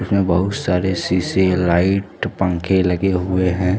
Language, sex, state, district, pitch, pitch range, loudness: Hindi, male, Jharkhand, Deoghar, 95 Hz, 90-95 Hz, -18 LUFS